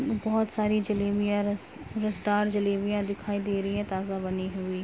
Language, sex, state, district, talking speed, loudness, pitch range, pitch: Hindi, female, Uttar Pradesh, Jalaun, 160 wpm, -29 LUFS, 195-210 Hz, 205 Hz